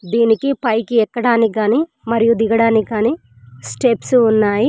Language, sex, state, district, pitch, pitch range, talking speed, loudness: Telugu, female, Telangana, Mahabubabad, 225 Hz, 215-235 Hz, 115 wpm, -15 LUFS